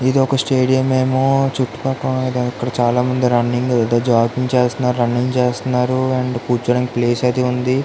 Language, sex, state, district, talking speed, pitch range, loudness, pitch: Telugu, male, Andhra Pradesh, Visakhapatnam, 145 wpm, 120-130 Hz, -17 LUFS, 125 Hz